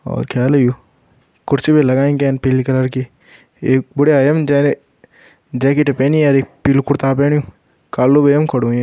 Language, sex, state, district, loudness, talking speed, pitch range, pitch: Garhwali, male, Uttarakhand, Tehri Garhwal, -14 LUFS, 175 wpm, 130-145 Hz, 135 Hz